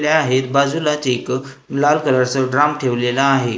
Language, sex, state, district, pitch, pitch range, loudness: Marathi, male, Maharashtra, Gondia, 135 Hz, 130-145 Hz, -17 LUFS